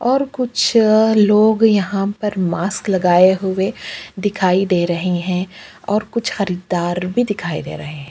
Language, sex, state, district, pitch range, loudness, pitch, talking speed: Hindi, female, Chhattisgarh, Kabirdham, 180-215 Hz, -17 LUFS, 195 Hz, 150 wpm